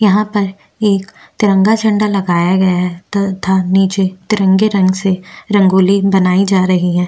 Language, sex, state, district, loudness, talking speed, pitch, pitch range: Hindi, female, Uttarakhand, Tehri Garhwal, -13 LUFS, 145 wpm, 195 Hz, 185-205 Hz